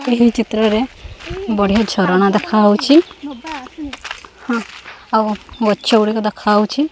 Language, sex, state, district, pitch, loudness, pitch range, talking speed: Odia, male, Odisha, Khordha, 220 Hz, -15 LUFS, 210-260 Hz, 80 wpm